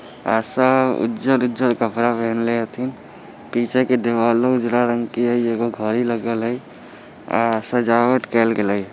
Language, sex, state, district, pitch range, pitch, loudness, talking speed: Hindi, male, Bihar, Muzaffarpur, 115-125 Hz, 120 Hz, -19 LUFS, 135 wpm